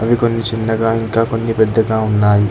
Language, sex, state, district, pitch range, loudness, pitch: Telugu, male, Telangana, Hyderabad, 110-115 Hz, -15 LUFS, 115 Hz